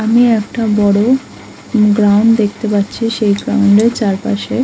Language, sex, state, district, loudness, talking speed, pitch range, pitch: Bengali, female, West Bengal, Kolkata, -13 LUFS, 130 wpm, 205-230 Hz, 215 Hz